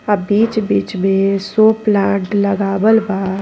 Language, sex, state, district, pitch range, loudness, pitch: Bhojpuri, female, Uttar Pradesh, Ghazipur, 195-215 Hz, -15 LUFS, 200 Hz